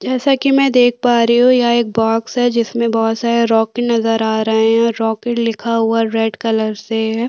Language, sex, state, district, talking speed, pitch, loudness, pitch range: Hindi, female, Uttarakhand, Tehri Garhwal, 215 wpm, 230 Hz, -15 LUFS, 225-240 Hz